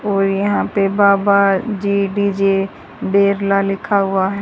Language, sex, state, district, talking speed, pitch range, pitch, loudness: Hindi, female, Haryana, Jhajjar, 135 wpm, 195-200 Hz, 200 Hz, -16 LUFS